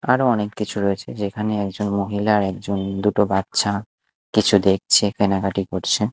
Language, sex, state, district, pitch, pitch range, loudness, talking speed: Bengali, male, Odisha, Malkangiri, 100 Hz, 100-105 Hz, -20 LUFS, 135 wpm